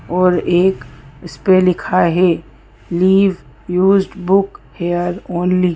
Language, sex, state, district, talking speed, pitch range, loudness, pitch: Hindi, female, Madhya Pradesh, Bhopal, 125 wpm, 170-185 Hz, -15 LUFS, 180 Hz